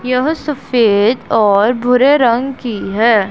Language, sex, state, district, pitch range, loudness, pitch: Hindi, female, Punjab, Pathankot, 215-260 Hz, -13 LUFS, 240 Hz